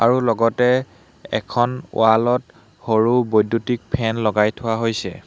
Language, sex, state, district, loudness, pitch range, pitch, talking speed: Assamese, male, Assam, Hailakandi, -19 LUFS, 110-125 Hz, 115 Hz, 125 wpm